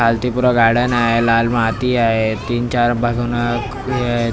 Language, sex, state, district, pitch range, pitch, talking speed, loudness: Marathi, male, Maharashtra, Mumbai Suburban, 115-120 Hz, 120 Hz, 165 wpm, -16 LUFS